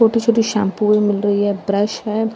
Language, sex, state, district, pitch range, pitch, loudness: Hindi, female, Bihar, Katihar, 205-225 Hz, 210 Hz, -17 LUFS